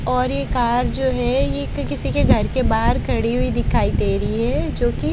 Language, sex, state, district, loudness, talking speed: Hindi, female, Haryana, Jhajjar, -20 LUFS, 220 wpm